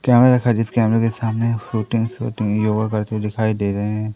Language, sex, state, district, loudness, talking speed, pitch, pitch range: Hindi, male, Madhya Pradesh, Katni, -19 LUFS, 200 wpm, 110 Hz, 105-115 Hz